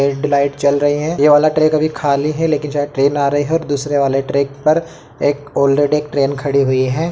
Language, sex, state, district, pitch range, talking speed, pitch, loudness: Hindi, male, Uttar Pradesh, Etah, 140-150 Hz, 225 wpm, 145 Hz, -15 LUFS